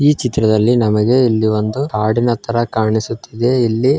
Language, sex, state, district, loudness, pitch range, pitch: Kannada, male, Karnataka, Chamarajanagar, -15 LUFS, 110-125 Hz, 115 Hz